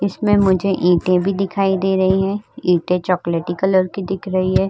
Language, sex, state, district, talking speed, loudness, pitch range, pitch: Hindi, female, Uttar Pradesh, Budaun, 180 wpm, -18 LUFS, 180-195 Hz, 190 Hz